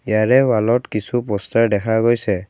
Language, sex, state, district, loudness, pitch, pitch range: Assamese, male, Assam, Kamrup Metropolitan, -17 LUFS, 110 Hz, 105-120 Hz